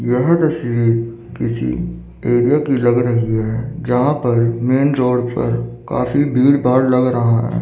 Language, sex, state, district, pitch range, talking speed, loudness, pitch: Hindi, male, Chandigarh, Chandigarh, 115-130 Hz, 150 wpm, -16 LUFS, 120 Hz